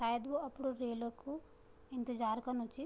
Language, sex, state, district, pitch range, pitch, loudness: Garhwali, female, Uttarakhand, Tehri Garhwal, 235-270 Hz, 245 Hz, -41 LUFS